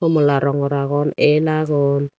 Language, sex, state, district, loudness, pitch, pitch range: Chakma, female, Tripura, Dhalai, -17 LUFS, 145 Hz, 140-150 Hz